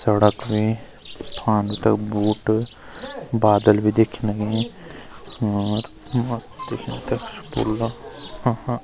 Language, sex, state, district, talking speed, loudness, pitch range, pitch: Garhwali, male, Uttarakhand, Uttarkashi, 110 wpm, -22 LUFS, 105-120 Hz, 110 Hz